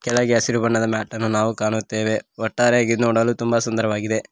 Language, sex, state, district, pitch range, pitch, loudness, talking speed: Kannada, male, Karnataka, Koppal, 110-115 Hz, 115 Hz, -20 LUFS, 155 wpm